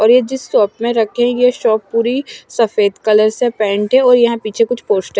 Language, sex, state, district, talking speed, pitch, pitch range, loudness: Hindi, male, Punjab, Fazilka, 240 wpm, 230 Hz, 215-245 Hz, -14 LUFS